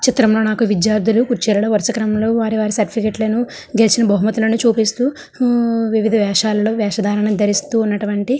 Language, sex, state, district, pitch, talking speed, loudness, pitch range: Telugu, female, Andhra Pradesh, Srikakulam, 220 Hz, 155 wpm, -16 LUFS, 210-230 Hz